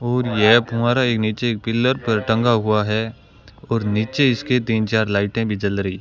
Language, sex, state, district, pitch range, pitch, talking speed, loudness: Hindi, male, Rajasthan, Bikaner, 110-120 Hz, 115 Hz, 200 wpm, -19 LUFS